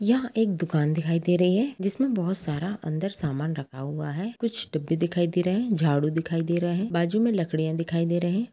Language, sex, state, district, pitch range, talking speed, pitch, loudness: Hindi, female, Chhattisgarh, Sukma, 160-200 Hz, 230 wpm, 175 Hz, -26 LUFS